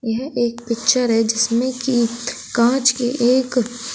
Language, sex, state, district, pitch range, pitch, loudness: Hindi, female, Uttar Pradesh, Shamli, 230-255 Hz, 240 Hz, -18 LUFS